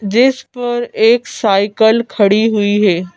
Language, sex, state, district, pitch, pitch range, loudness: Hindi, female, Madhya Pradesh, Bhopal, 220 Hz, 205-240 Hz, -13 LUFS